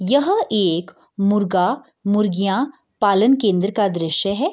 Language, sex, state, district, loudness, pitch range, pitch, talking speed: Hindi, female, Bihar, Gopalganj, -19 LUFS, 195-230 Hz, 205 Hz, 105 wpm